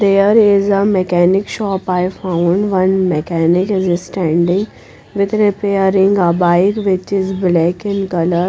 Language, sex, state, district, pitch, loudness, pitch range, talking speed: English, female, Punjab, Pathankot, 190 Hz, -14 LUFS, 175-200 Hz, 140 wpm